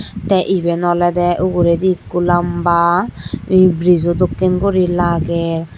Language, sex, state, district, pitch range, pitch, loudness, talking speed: Chakma, male, Tripura, Dhalai, 170-185 Hz, 175 Hz, -15 LUFS, 105 wpm